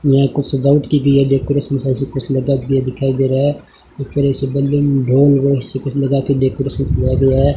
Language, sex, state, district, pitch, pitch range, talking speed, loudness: Hindi, male, Rajasthan, Bikaner, 135 Hz, 135-140 Hz, 200 wpm, -15 LUFS